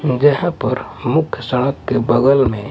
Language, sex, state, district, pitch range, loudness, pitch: Hindi, male, Maharashtra, Mumbai Suburban, 125-145 Hz, -16 LUFS, 135 Hz